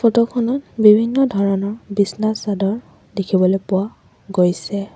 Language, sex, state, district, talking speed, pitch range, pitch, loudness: Assamese, female, Assam, Sonitpur, 110 wpm, 195-230 Hz, 205 Hz, -18 LUFS